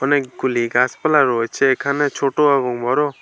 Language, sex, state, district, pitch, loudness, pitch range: Bengali, male, West Bengal, Alipurduar, 135 Hz, -18 LUFS, 125-145 Hz